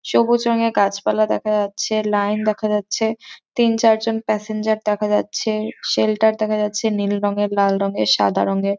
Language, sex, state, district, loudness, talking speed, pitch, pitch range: Bengali, female, West Bengal, Jhargram, -19 LUFS, 165 wpm, 215 Hz, 205-220 Hz